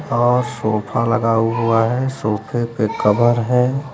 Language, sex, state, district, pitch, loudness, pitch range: Hindi, male, Uttar Pradesh, Lucknow, 115 Hz, -18 LUFS, 115-125 Hz